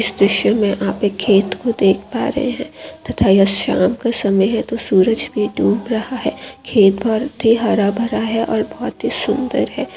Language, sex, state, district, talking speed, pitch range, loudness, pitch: Hindi, female, Rajasthan, Churu, 200 wpm, 200-235 Hz, -16 LUFS, 220 Hz